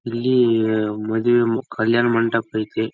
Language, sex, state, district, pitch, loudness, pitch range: Kannada, male, Karnataka, Raichur, 115 Hz, -19 LUFS, 110-120 Hz